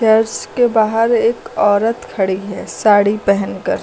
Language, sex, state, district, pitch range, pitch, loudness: Hindi, female, Uttar Pradesh, Lucknow, 200-225 Hz, 215 Hz, -15 LUFS